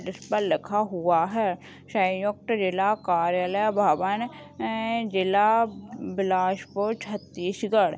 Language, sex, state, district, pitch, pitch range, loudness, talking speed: Hindi, female, Chhattisgarh, Bilaspur, 205 Hz, 185-215 Hz, -25 LUFS, 90 wpm